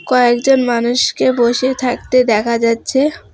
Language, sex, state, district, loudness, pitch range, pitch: Bengali, female, West Bengal, Alipurduar, -14 LUFS, 235-255 Hz, 245 Hz